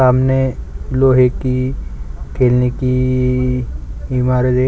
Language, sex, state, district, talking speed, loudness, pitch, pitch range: Hindi, male, Chhattisgarh, Sukma, 75 wpm, -16 LUFS, 125 Hz, 125-130 Hz